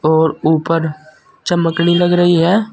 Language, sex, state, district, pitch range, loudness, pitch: Hindi, male, Uttar Pradesh, Saharanpur, 160-175 Hz, -14 LUFS, 165 Hz